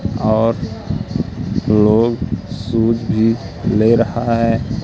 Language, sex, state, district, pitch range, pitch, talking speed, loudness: Hindi, male, Madhya Pradesh, Katni, 110-115 Hz, 115 Hz, 75 wpm, -17 LUFS